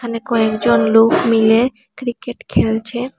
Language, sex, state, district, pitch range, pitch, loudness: Bengali, female, Assam, Hailakandi, 220-240 Hz, 230 Hz, -15 LUFS